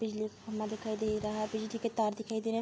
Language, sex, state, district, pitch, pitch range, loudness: Hindi, female, Bihar, Begusarai, 220 Hz, 215-220 Hz, -35 LUFS